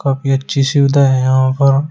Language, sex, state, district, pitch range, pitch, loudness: Hindi, male, Uttar Pradesh, Shamli, 135-140 Hz, 135 Hz, -13 LUFS